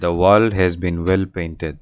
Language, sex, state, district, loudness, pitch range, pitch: English, male, Arunachal Pradesh, Lower Dibang Valley, -18 LUFS, 85-95 Hz, 90 Hz